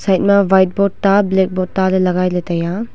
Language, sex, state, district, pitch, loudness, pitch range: Wancho, female, Arunachal Pradesh, Longding, 190 Hz, -15 LUFS, 185-200 Hz